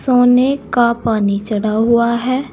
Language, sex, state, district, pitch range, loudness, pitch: Hindi, female, Uttar Pradesh, Saharanpur, 220-250 Hz, -15 LUFS, 235 Hz